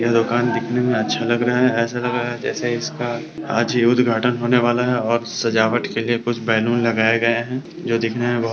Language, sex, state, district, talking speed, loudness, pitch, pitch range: Hindi, male, Bihar, Sitamarhi, 240 wpm, -19 LUFS, 120 Hz, 115-120 Hz